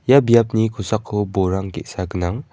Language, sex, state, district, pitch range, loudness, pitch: Garo, male, Meghalaya, West Garo Hills, 95-115 Hz, -19 LUFS, 105 Hz